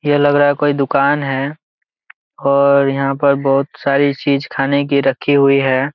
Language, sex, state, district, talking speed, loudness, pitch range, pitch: Hindi, male, Jharkhand, Jamtara, 160 wpm, -15 LUFS, 135-145 Hz, 140 Hz